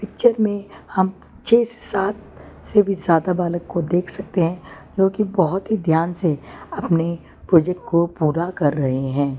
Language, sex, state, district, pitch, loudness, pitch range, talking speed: Hindi, female, Gujarat, Valsad, 180 Hz, -20 LUFS, 165-195 Hz, 165 wpm